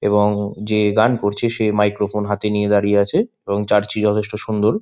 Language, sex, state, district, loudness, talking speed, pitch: Bengali, male, West Bengal, Malda, -18 LUFS, 175 wpm, 105 Hz